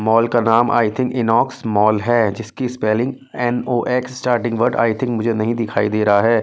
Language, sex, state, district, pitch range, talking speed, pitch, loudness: Hindi, male, Delhi, New Delhi, 110-120 Hz, 215 wpm, 115 Hz, -18 LUFS